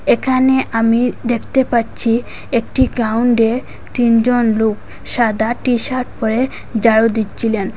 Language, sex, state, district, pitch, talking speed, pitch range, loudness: Bengali, female, Assam, Hailakandi, 235 Hz, 100 wpm, 225-245 Hz, -16 LUFS